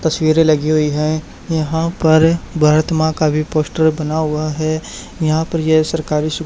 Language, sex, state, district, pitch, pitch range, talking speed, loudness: Hindi, male, Haryana, Charkhi Dadri, 155 Hz, 155-160 Hz, 175 wpm, -16 LUFS